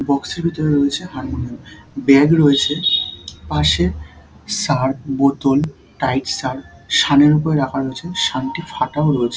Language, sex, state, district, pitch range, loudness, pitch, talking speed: Bengali, male, West Bengal, Dakshin Dinajpur, 130-150 Hz, -17 LUFS, 140 Hz, 135 wpm